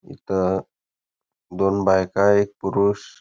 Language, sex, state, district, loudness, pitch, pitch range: Marathi, male, Karnataka, Belgaum, -21 LUFS, 95 Hz, 95-100 Hz